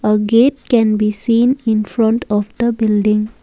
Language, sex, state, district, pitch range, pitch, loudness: English, female, Assam, Kamrup Metropolitan, 210-235 Hz, 220 Hz, -15 LUFS